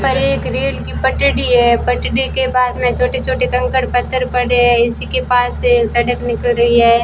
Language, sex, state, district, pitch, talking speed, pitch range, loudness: Hindi, female, Rajasthan, Bikaner, 245 Hz, 205 wpm, 240-255 Hz, -14 LUFS